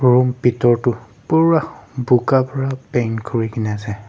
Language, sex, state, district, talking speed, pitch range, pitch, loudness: Nagamese, male, Nagaland, Dimapur, 130 wpm, 115-130 Hz, 125 Hz, -18 LUFS